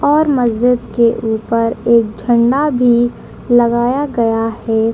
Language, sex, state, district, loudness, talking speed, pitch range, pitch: Hindi, female, Bihar, Madhepura, -14 LUFS, 120 wpm, 230-245 Hz, 235 Hz